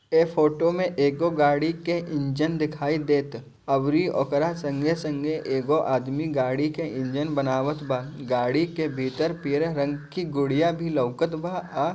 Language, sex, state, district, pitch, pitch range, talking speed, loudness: Bhojpuri, male, Bihar, Gopalganj, 150 Hz, 140-165 Hz, 155 wpm, -25 LUFS